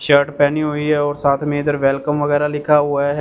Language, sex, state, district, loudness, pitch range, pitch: Hindi, male, Punjab, Fazilka, -17 LUFS, 145-150 Hz, 145 Hz